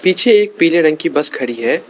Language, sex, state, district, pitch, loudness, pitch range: Hindi, male, Arunachal Pradesh, Lower Dibang Valley, 165 Hz, -13 LUFS, 150-195 Hz